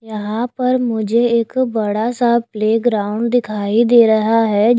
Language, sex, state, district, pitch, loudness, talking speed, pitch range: Hindi, female, Haryana, Jhajjar, 230 Hz, -16 LUFS, 140 wpm, 215-240 Hz